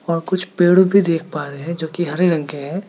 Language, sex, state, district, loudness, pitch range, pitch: Hindi, male, Meghalaya, West Garo Hills, -18 LUFS, 160-185 Hz, 170 Hz